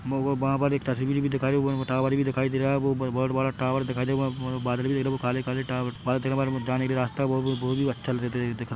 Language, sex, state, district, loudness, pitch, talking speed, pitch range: Hindi, male, Chhattisgarh, Bilaspur, -27 LUFS, 130 Hz, 210 wpm, 130-135 Hz